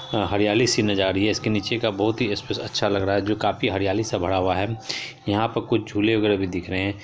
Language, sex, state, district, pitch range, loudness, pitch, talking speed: Hindi, female, Bihar, Saharsa, 100-110 Hz, -23 LUFS, 105 Hz, 270 wpm